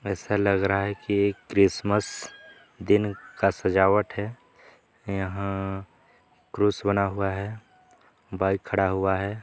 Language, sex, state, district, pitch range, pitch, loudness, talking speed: Hindi, male, Chhattisgarh, Balrampur, 95-105 Hz, 100 Hz, -25 LUFS, 125 wpm